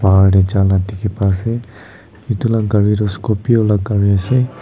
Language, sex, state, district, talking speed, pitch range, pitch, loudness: Nagamese, male, Nagaland, Kohima, 170 wpm, 95-110 Hz, 105 Hz, -15 LUFS